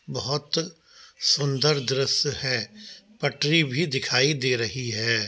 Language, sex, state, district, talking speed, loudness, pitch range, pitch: Hindi, male, Uttar Pradesh, Budaun, 115 wpm, -24 LUFS, 125-155 Hz, 140 Hz